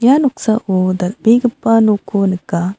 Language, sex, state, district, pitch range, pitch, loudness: Garo, female, Meghalaya, South Garo Hills, 190-240 Hz, 215 Hz, -14 LUFS